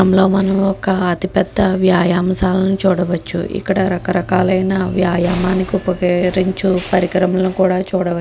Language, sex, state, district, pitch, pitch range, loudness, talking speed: Telugu, female, Andhra Pradesh, Guntur, 185 Hz, 180-190 Hz, -16 LUFS, 130 wpm